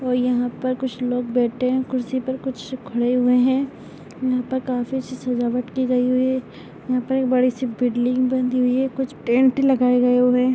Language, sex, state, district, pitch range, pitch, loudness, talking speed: Hindi, female, Chhattisgarh, Raigarh, 250-260 Hz, 255 Hz, -21 LUFS, 210 wpm